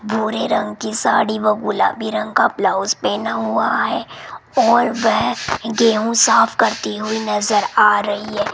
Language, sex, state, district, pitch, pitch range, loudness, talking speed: Hindi, female, Rajasthan, Jaipur, 215 Hz, 210-220 Hz, -17 LUFS, 155 wpm